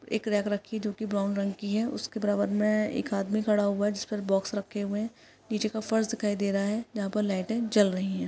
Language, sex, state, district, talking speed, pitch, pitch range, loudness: Hindi, female, Maharashtra, Solapur, 270 wpm, 210 Hz, 200-220 Hz, -29 LUFS